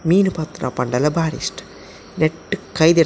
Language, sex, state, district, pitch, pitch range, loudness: Tulu, male, Karnataka, Dakshina Kannada, 160 Hz, 150-165 Hz, -20 LUFS